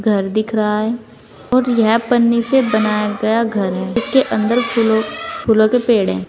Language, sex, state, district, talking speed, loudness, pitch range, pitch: Hindi, female, Uttar Pradesh, Saharanpur, 170 wpm, -16 LUFS, 215-235 Hz, 220 Hz